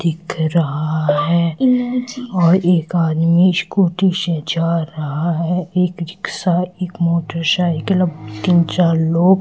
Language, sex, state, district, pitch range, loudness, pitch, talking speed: Hindi, female, Madhya Pradesh, Katni, 165-180 Hz, -17 LUFS, 170 Hz, 115 wpm